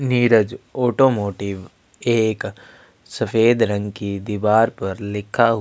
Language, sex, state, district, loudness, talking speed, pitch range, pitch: Hindi, male, Chhattisgarh, Sukma, -19 LUFS, 130 wpm, 100-120 Hz, 110 Hz